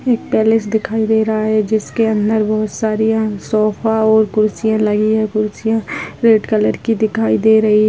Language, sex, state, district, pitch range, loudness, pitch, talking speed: Hindi, female, Uttar Pradesh, Gorakhpur, 215-220 Hz, -15 LUFS, 220 Hz, 180 wpm